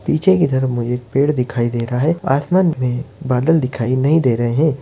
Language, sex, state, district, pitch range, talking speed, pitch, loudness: Hindi, male, Bihar, Muzaffarpur, 125-155 Hz, 225 wpm, 130 Hz, -17 LUFS